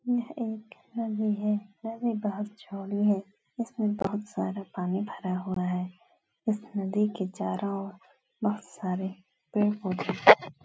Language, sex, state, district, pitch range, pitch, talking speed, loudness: Hindi, female, Uttar Pradesh, Etah, 190-215 Hz, 205 Hz, 150 wpm, -30 LUFS